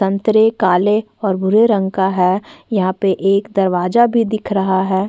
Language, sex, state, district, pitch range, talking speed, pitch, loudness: Hindi, female, Chhattisgarh, Korba, 190-215 Hz, 175 wpm, 195 Hz, -15 LUFS